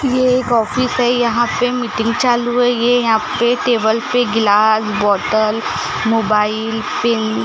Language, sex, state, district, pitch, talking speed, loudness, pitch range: Hindi, female, Maharashtra, Gondia, 235 Hz, 155 wpm, -15 LUFS, 215-245 Hz